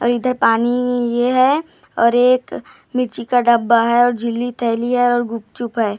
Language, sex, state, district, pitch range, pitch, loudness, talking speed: Hindi, female, Maharashtra, Gondia, 235-250 Hz, 240 Hz, -17 LUFS, 150 wpm